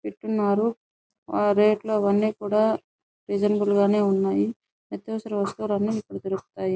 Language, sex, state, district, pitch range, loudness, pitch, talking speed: Telugu, female, Andhra Pradesh, Chittoor, 200-215 Hz, -24 LUFS, 205 Hz, 115 wpm